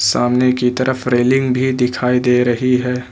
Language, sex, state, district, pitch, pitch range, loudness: Hindi, male, Jharkhand, Ranchi, 125 Hz, 125-130 Hz, -15 LUFS